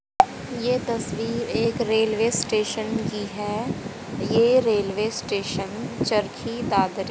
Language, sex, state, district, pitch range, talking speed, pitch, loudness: Hindi, female, Haryana, Charkhi Dadri, 205-230 Hz, 100 wpm, 220 Hz, -24 LUFS